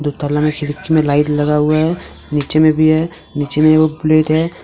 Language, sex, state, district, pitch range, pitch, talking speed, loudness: Hindi, male, Jharkhand, Deoghar, 150-155 Hz, 155 Hz, 235 wpm, -14 LUFS